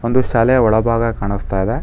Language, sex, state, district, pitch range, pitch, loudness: Kannada, male, Karnataka, Bangalore, 105-120 Hz, 115 Hz, -16 LUFS